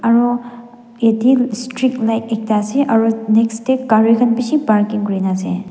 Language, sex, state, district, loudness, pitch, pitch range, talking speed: Nagamese, female, Nagaland, Dimapur, -16 LUFS, 230 Hz, 220-245 Hz, 170 wpm